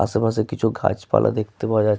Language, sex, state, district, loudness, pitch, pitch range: Bengali, male, West Bengal, Paschim Medinipur, -21 LUFS, 110 Hz, 105-115 Hz